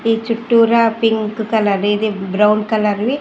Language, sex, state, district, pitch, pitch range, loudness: Telugu, female, Andhra Pradesh, Sri Satya Sai, 220 Hz, 210-230 Hz, -15 LUFS